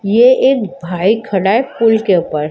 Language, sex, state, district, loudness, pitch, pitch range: Hindi, female, Maharashtra, Mumbai Suburban, -13 LUFS, 210 Hz, 180-230 Hz